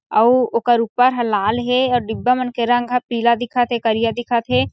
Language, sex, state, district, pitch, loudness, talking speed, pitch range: Chhattisgarhi, female, Chhattisgarh, Sarguja, 240 Hz, -17 LUFS, 230 wpm, 230-245 Hz